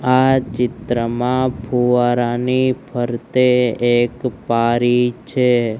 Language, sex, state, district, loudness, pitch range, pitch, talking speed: Gujarati, male, Gujarat, Gandhinagar, -17 LUFS, 120-125 Hz, 120 Hz, 70 wpm